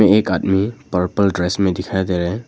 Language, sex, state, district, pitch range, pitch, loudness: Hindi, male, Arunachal Pradesh, Longding, 90-105 Hz, 95 Hz, -18 LUFS